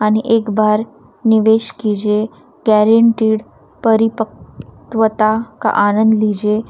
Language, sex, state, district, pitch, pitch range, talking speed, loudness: Marathi, female, Maharashtra, Washim, 220 Hz, 215-225 Hz, 90 wpm, -15 LUFS